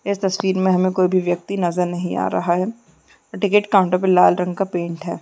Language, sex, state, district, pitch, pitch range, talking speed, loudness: Chhattisgarhi, female, Chhattisgarh, Jashpur, 185 Hz, 180-195 Hz, 230 wpm, -19 LUFS